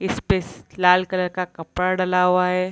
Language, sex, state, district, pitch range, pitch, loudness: Hindi, female, Bihar, Bhagalpur, 180-185 Hz, 180 Hz, -21 LUFS